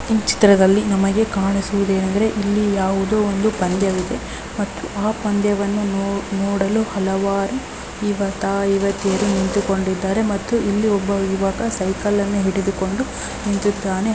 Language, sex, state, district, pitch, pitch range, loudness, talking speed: Kannada, female, Karnataka, Belgaum, 200 Hz, 195-205 Hz, -19 LUFS, 100 wpm